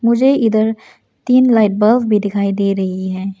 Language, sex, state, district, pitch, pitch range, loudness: Hindi, female, Arunachal Pradesh, Lower Dibang Valley, 215 Hz, 195-235 Hz, -14 LUFS